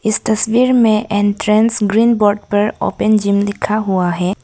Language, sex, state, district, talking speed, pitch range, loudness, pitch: Hindi, female, Arunachal Pradesh, Lower Dibang Valley, 160 wpm, 205-220 Hz, -14 LUFS, 215 Hz